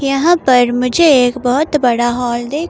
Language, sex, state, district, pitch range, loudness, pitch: Hindi, female, Himachal Pradesh, Shimla, 245-300 Hz, -13 LUFS, 250 Hz